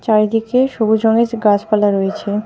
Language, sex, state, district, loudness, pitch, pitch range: Bengali, female, West Bengal, Alipurduar, -15 LUFS, 220 Hz, 205-225 Hz